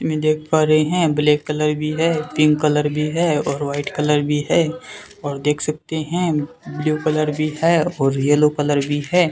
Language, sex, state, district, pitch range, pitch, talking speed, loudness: Hindi, male, Rajasthan, Bikaner, 150-155 Hz, 150 Hz, 200 wpm, -19 LUFS